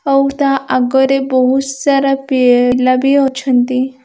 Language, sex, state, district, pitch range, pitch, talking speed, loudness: Odia, female, Odisha, Khordha, 255-275 Hz, 265 Hz, 120 wpm, -13 LUFS